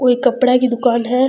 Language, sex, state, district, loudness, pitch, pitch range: Rajasthani, female, Rajasthan, Churu, -15 LUFS, 250 Hz, 245-255 Hz